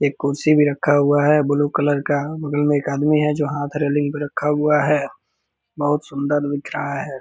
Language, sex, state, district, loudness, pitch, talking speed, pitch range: Hindi, male, Bihar, Purnia, -19 LUFS, 145 Hz, 225 wpm, 145-150 Hz